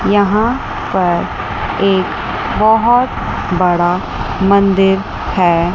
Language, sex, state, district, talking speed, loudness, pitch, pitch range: Hindi, female, Chandigarh, Chandigarh, 75 wpm, -14 LUFS, 195 Hz, 180-215 Hz